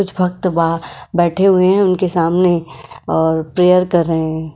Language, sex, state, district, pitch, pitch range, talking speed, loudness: Hindi, female, Maharashtra, Chandrapur, 175 Hz, 160-185 Hz, 170 wpm, -15 LUFS